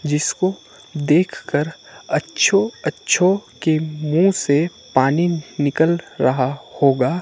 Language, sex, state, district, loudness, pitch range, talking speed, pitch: Hindi, male, Himachal Pradesh, Shimla, -19 LUFS, 145-175 Hz, 90 wpm, 160 Hz